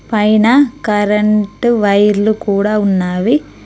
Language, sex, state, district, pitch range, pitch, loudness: Telugu, female, Telangana, Mahabubabad, 205-220 Hz, 210 Hz, -13 LUFS